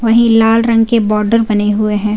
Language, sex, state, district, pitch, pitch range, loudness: Hindi, female, Jharkhand, Garhwa, 225 Hz, 210-230 Hz, -11 LUFS